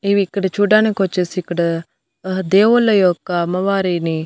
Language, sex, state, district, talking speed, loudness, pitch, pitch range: Telugu, female, Andhra Pradesh, Annamaya, 110 wpm, -16 LUFS, 190 Hz, 175-200 Hz